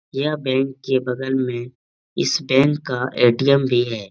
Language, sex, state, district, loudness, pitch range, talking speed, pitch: Hindi, male, Uttar Pradesh, Etah, -19 LUFS, 125-135 Hz, 160 wpm, 130 Hz